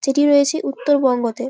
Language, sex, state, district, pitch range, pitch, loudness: Bengali, female, West Bengal, Jalpaiguri, 255-290 Hz, 275 Hz, -17 LUFS